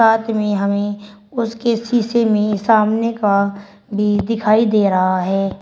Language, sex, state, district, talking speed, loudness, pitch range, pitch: Hindi, female, Uttar Pradesh, Shamli, 140 wpm, -17 LUFS, 200-225 Hz, 210 Hz